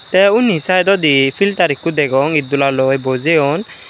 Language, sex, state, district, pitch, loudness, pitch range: Chakma, male, Tripura, Unakoti, 155 Hz, -14 LUFS, 135-185 Hz